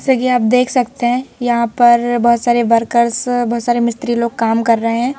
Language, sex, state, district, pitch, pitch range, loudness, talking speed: Hindi, female, Madhya Pradesh, Bhopal, 240 Hz, 235-245 Hz, -14 LUFS, 210 wpm